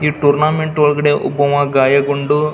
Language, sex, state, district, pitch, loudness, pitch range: Kannada, male, Karnataka, Belgaum, 145 Hz, -14 LUFS, 145-150 Hz